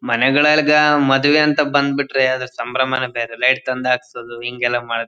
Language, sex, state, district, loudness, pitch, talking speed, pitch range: Kannada, male, Karnataka, Bellary, -16 LUFS, 130 Hz, 165 wpm, 125-140 Hz